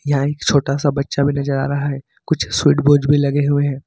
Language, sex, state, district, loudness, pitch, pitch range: Hindi, male, Jharkhand, Ranchi, -17 LUFS, 140 Hz, 140-145 Hz